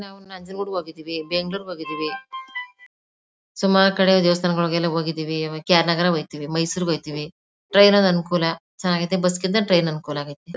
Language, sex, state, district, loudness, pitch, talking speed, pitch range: Kannada, female, Karnataka, Mysore, -21 LUFS, 175 Hz, 135 wpm, 160-190 Hz